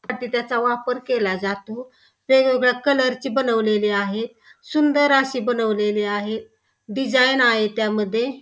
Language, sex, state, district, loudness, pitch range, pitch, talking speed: Marathi, female, Maharashtra, Pune, -20 LUFS, 215-260 Hz, 245 Hz, 115 wpm